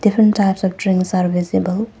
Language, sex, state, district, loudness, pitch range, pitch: English, female, Arunachal Pradesh, Papum Pare, -17 LUFS, 185-210 Hz, 190 Hz